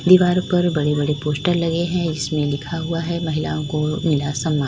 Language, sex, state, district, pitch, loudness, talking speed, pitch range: Hindi, female, Uttar Pradesh, Lalitpur, 155 Hz, -20 LUFS, 205 wpm, 150-170 Hz